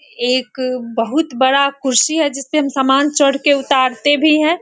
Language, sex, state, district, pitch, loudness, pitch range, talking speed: Hindi, female, Bihar, Sitamarhi, 275 Hz, -15 LUFS, 255-295 Hz, 155 wpm